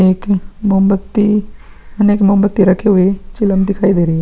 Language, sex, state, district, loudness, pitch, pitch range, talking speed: Hindi, male, Bihar, Vaishali, -13 LUFS, 200 Hz, 190-205 Hz, 185 wpm